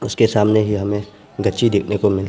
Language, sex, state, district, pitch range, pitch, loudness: Hindi, male, Arunachal Pradesh, Papum Pare, 100-110 Hz, 105 Hz, -18 LUFS